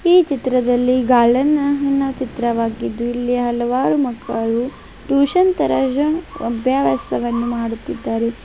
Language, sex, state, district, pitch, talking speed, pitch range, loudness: Kannada, female, Karnataka, Belgaum, 250 Hz, 80 wpm, 235-280 Hz, -18 LUFS